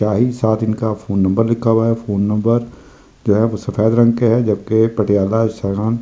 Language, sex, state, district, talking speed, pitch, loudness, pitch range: Hindi, male, Delhi, New Delhi, 220 wpm, 110 Hz, -16 LUFS, 105-115 Hz